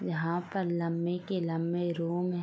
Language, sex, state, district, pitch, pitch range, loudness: Hindi, female, Uttar Pradesh, Gorakhpur, 175 Hz, 170-180 Hz, -32 LUFS